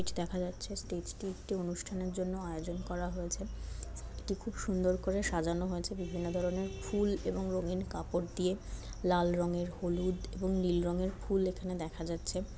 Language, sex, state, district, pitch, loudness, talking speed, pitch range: Bengali, female, West Bengal, Malda, 180 Hz, -36 LUFS, 165 wpm, 175-190 Hz